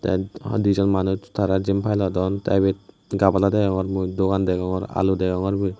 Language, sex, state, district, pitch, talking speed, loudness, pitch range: Chakma, male, Tripura, West Tripura, 95 Hz, 175 wpm, -22 LUFS, 95-100 Hz